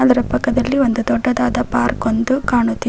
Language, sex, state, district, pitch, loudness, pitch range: Kannada, female, Karnataka, Koppal, 245 Hz, -17 LUFS, 235-255 Hz